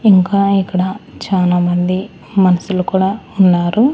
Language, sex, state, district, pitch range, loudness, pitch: Telugu, male, Andhra Pradesh, Annamaya, 180-200 Hz, -14 LUFS, 190 Hz